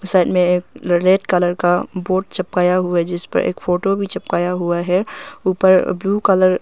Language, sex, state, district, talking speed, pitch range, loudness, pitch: Hindi, female, Arunachal Pradesh, Longding, 180 wpm, 180-190 Hz, -17 LUFS, 180 Hz